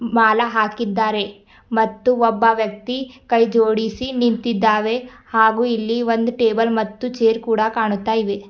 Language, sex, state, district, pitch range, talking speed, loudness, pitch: Kannada, female, Karnataka, Bidar, 220-235 Hz, 120 wpm, -18 LUFS, 225 Hz